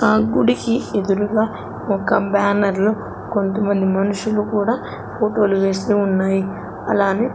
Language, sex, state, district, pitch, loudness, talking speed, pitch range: Telugu, female, Andhra Pradesh, Sri Satya Sai, 205 Hz, -19 LUFS, 105 wpm, 195-215 Hz